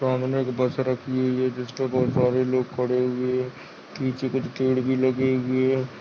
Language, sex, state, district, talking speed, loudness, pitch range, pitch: Hindi, male, Uttarakhand, Uttarkashi, 200 wpm, -24 LUFS, 125-130 Hz, 130 Hz